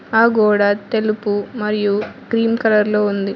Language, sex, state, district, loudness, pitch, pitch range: Telugu, female, Telangana, Mahabubabad, -17 LUFS, 210 Hz, 205-220 Hz